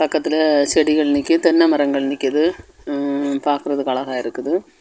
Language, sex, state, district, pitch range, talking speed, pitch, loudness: Tamil, female, Tamil Nadu, Kanyakumari, 140-155 Hz, 125 wpm, 145 Hz, -18 LUFS